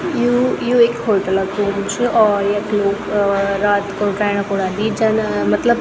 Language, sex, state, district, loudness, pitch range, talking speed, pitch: Garhwali, female, Uttarakhand, Tehri Garhwal, -17 LUFS, 200-220 Hz, 185 wpm, 205 Hz